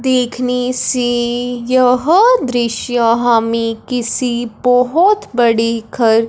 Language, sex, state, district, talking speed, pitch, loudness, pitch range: Hindi, male, Punjab, Fazilka, 85 wpm, 245 Hz, -14 LUFS, 235-250 Hz